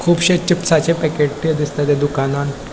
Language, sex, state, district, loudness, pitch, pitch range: Konkani, male, Goa, North and South Goa, -17 LUFS, 150 Hz, 145-170 Hz